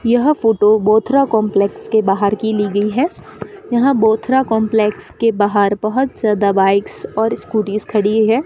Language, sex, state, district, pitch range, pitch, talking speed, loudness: Hindi, female, Rajasthan, Bikaner, 205-235 Hz, 220 Hz, 155 wpm, -15 LUFS